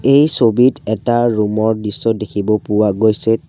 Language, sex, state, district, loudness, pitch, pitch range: Assamese, male, Assam, Sonitpur, -15 LUFS, 110 Hz, 105-120 Hz